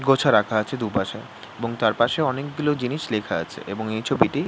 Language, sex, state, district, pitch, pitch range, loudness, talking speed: Bengali, male, West Bengal, North 24 Parganas, 125 Hz, 110-140 Hz, -23 LUFS, 215 wpm